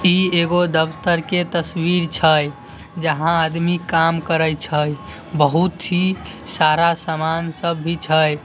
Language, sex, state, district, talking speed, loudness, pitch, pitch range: Hindi, male, Bihar, Samastipur, 135 wpm, -18 LUFS, 165 Hz, 155-175 Hz